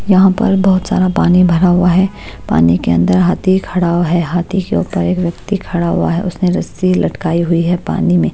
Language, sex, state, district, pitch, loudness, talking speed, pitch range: Hindi, female, Haryana, Jhajjar, 180 Hz, -13 LUFS, 215 wpm, 170-190 Hz